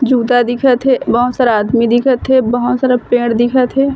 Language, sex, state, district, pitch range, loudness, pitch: Chhattisgarhi, female, Chhattisgarh, Bilaspur, 240-260 Hz, -13 LUFS, 245 Hz